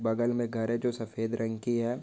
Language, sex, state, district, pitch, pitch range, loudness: Hindi, male, Chhattisgarh, Korba, 115 Hz, 115-120 Hz, -31 LUFS